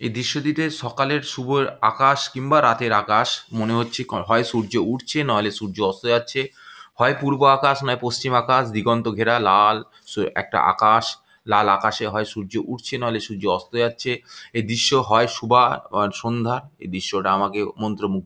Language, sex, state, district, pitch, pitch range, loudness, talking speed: Bengali, male, West Bengal, Malda, 120 Hz, 110-130 Hz, -21 LUFS, 150 wpm